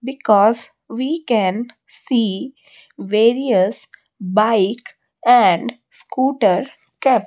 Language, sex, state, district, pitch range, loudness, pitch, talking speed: English, female, Odisha, Malkangiri, 215-260 Hz, -17 LUFS, 235 Hz, 85 wpm